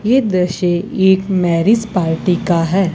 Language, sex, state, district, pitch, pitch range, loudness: Hindi, female, Rajasthan, Bikaner, 185 Hz, 175-195 Hz, -15 LUFS